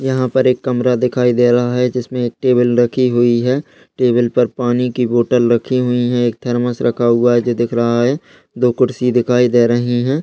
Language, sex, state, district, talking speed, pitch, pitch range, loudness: Hindi, male, Uttar Pradesh, Deoria, 210 wpm, 125 Hz, 120-125 Hz, -15 LUFS